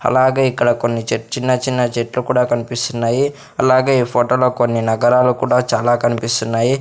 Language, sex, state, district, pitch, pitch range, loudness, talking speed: Telugu, male, Andhra Pradesh, Sri Satya Sai, 125 Hz, 120-130 Hz, -16 LUFS, 160 wpm